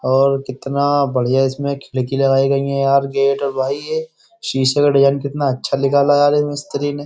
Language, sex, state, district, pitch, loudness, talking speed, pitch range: Hindi, male, Uttar Pradesh, Jyotiba Phule Nagar, 140 Hz, -17 LUFS, 205 wpm, 135-145 Hz